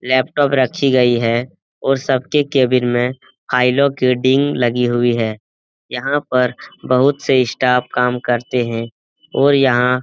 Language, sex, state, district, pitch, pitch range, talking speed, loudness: Hindi, male, Bihar, Jamui, 125 Hz, 120-135 Hz, 145 wpm, -16 LUFS